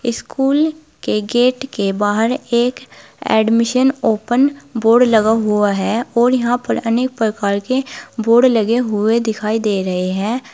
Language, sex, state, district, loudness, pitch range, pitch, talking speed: Hindi, female, Uttar Pradesh, Saharanpur, -16 LUFS, 215-250 Hz, 230 Hz, 140 wpm